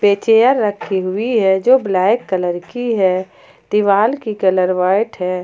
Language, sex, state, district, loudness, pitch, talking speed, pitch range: Hindi, female, Jharkhand, Ranchi, -15 LUFS, 200 Hz, 165 wpm, 185-225 Hz